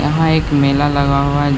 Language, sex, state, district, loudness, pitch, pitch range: Hindi, male, Bihar, Gaya, -14 LUFS, 145 Hz, 140-150 Hz